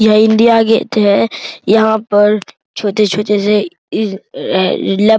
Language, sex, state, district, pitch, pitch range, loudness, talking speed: Hindi, male, Bihar, Araria, 210 Hz, 205-220 Hz, -13 LUFS, 90 wpm